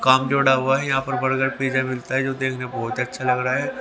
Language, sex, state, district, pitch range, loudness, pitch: Hindi, male, Haryana, Rohtak, 130-135 Hz, -21 LUFS, 130 Hz